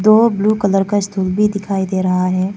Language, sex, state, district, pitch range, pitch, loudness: Hindi, female, Arunachal Pradesh, Papum Pare, 190-210 Hz, 200 Hz, -16 LUFS